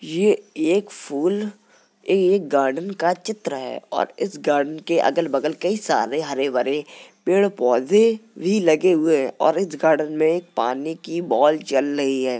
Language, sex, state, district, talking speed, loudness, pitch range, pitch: Hindi, female, Uttar Pradesh, Jalaun, 170 wpm, -21 LUFS, 145-195 Hz, 160 Hz